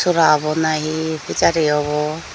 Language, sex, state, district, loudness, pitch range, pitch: Chakma, female, Tripura, Dhalai, -18 LUFS, 150-160 Hz, 155 Hz